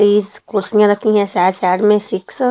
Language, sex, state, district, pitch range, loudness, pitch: Hindi, female, Himachal Pradesh, Shimla, 200-210 Hz, -15 LUFS, 205 Hz